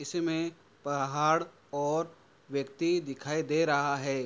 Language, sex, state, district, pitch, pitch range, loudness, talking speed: Hindi, male, Uttar Pradesh, Hamirpur, 150 Hz, 140-165 Hz, -31 LUFS, 115 wpm